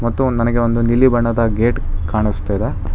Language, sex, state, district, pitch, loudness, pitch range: Kannada, male, Karnataka, Bangalore, 115 Hz, -17 LUFS, 105-120 Hz